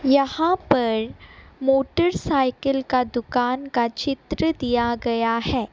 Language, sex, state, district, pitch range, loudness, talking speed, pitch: Hindi, female, Assam, Kamrup Metropolitan, 240-280 Hz, -22 LUFS, 105 wpm, 265 Hz